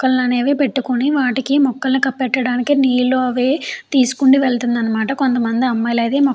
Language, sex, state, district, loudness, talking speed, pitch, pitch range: Telugu, female, Andhra Pradesh, Chittoor, -16 LUFS, 140 wpm, 260 Hz, 245-275 Hz